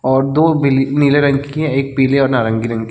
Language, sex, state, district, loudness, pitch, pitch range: Hindi, male, Chhattisgarh, Rajnandgaon, -14 LUFS, 135 Hz, 130-145 Hz